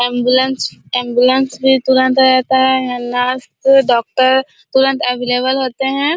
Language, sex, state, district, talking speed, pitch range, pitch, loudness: Hindi, female, Chhattisgarh, Korba, 135 wpm, 250-265 Hz, 260 Hz, -14 LUFS